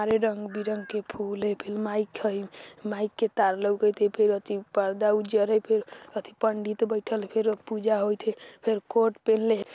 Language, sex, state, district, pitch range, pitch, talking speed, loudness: Bajjika, female, Bihar, Vaishali, 210-220 Hz, 210 Hz, 190 wpm, -27 LUFS